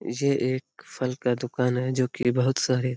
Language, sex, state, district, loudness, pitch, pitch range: Hindi, male, Bihar, Lakhisarai, -26 LUFS, 125 Hz, 125-130 Hz